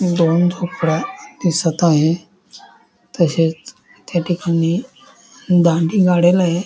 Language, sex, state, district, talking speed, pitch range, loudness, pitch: Marathi, male, Maharashtra, Dhule, 100 wpm, 165-185 Hz, -17 LUFS, 175 Hz